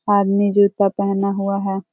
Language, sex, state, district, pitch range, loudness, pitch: Hindi, female, Uttar Pradesh, Ghazipur, 195-200 Hz, -18 LUFS, 200 Hz